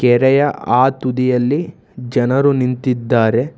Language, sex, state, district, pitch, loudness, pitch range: Kannada, male, Karnataka, Bangalore, 125 Hz, -15 LUFS, 125-135 Hz